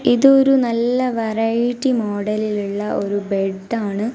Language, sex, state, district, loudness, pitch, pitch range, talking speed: Malayalam, female, Kerala, Kasaragod, -18 LUFS, 225 Hz, 205-245 Hz, 100 wpm